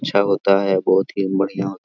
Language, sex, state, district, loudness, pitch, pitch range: Hindi, male, Jharkhand, Sahebganj, -18 LUFS, 95 Hz, 95-100 Hz